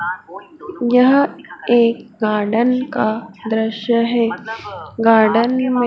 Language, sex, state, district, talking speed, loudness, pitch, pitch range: Hindi, female, Madhya Pradesh, Dhar, 80 wpm, -16 LUFS, 230 Hz, 220-245 Hz